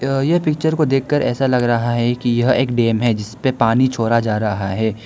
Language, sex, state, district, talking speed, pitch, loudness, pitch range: Hindi, male, Arunachal Pradesh, Lower Dibang Valley, 235 wpm, 120 Hz, -17 LUFS, 115-135 Hz